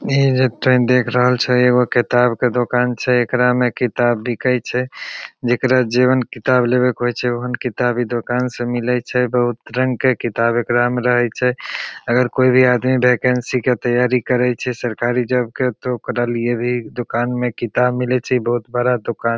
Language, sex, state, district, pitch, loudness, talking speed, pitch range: Maithili, male, Bihar, Begusarai, 125 Hz, -17 LUFS, 190 wpm, 120-125 Hz